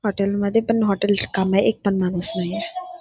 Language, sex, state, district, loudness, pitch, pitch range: Marathi, female, Maharashtra, Dhule, -21 LUFS, 200 Hz, 190-225 Hz